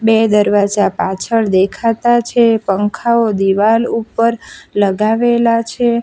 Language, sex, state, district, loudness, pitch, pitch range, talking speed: Gujarati, female, Gujarat, Valsad, -14 LUFS, 225 Hz, 205-235 Hz, 100 wpm